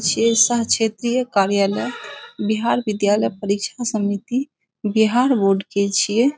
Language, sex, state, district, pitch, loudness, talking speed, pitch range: Maithili, female, Bihar, Saharsa, 215 Hz, -19 LUFS, 115 wpm, 200-240 Hz